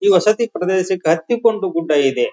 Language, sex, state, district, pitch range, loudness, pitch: Kannada, male, Karnataka, Bijapur, 160-220 Hz, -17 LUFS, 185 Hz